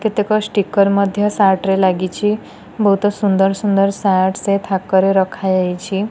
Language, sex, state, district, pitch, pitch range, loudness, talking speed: Odia, female, Odisha, Nuapada, 195 Hz, 190-205 Hz, -16 LUFS, 130 wpm